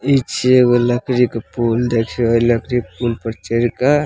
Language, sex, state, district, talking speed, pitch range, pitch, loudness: Maithili, male, Bihar, Samastipur, 205 wpm, 115-125 Hz, 120 Hz, -16 LUFS